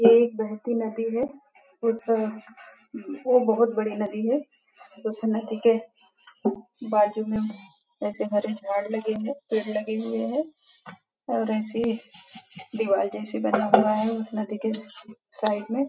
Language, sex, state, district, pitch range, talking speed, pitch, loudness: Hindi, female, Maharashtra, Nagpur, 215-235 Hz, 150 wpm, 220 Hz, -26 LUFS